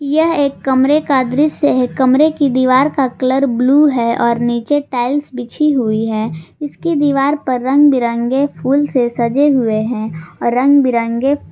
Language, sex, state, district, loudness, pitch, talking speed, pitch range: Hindi, female, Jharkhand, Garhwa, -14 LUFS, 260 Hz, 165 wpm, 240-285 Hz